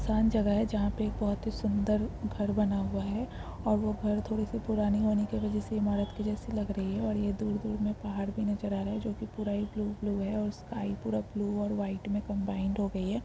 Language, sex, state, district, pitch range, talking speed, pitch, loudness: Hindi, female, Andhra Pradesh, Chittoor, 200-215 Hz, 260 wpm, 210 Hz, -32 LUFS